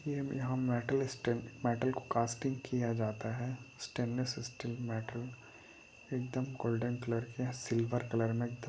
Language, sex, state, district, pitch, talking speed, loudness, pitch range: Hindi, male, Chhattisgarh, Raigarh, 120 Hz, 145 wpm, -37 LUFS, 115-130 Hz